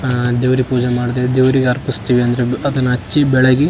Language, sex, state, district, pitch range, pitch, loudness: Kannada, male, Karnataka, Raichur, 125-130 Hz, 125 Hz, -15 LUFS